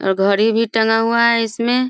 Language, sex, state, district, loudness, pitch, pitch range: Hindi, female, Bihar, Sitamarhi, -16 LUFS, 225 Hz, 220-235 Hz